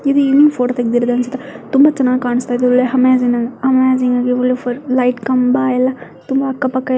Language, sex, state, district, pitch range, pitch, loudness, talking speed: Kannada, female, Karnataka, Mysore, 250-265 Hz, 255 Hz, -14 LUFS, 155 wpm